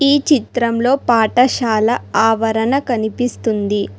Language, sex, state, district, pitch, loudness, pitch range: Telugu, female, Telangana, Hyderabad, 235 Hz, -16 LUFS, 220-250 Hz